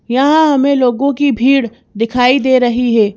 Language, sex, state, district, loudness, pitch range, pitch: Hindi, female, Madhya Pradesh, Bhopal, -12 LUFS, 240-275 Hz, 255 Hz